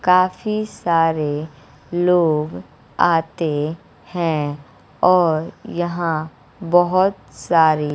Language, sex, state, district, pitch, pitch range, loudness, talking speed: Hindi, female, Bihar, West Champaran, 165 Hz, 150-175 Hz, -19 LUFS, 70 wpm